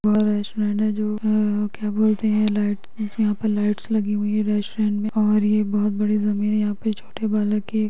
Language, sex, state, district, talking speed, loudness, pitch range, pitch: Magahi, female, Bihar, Gaya, 175 wpm, -22 LUFS, 210-215 Hz, 210 Hz